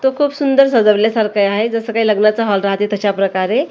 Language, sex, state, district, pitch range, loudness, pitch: Marathi, female, Maharashtra, Gondia, 205-230 Hz, -14 LUFS, 215 Hz